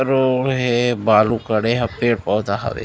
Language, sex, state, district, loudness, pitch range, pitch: Chhattisgarhi, male, Chhattisgarh, Raigarh, -18 LUFS, 110-125 Hz, 120 Hz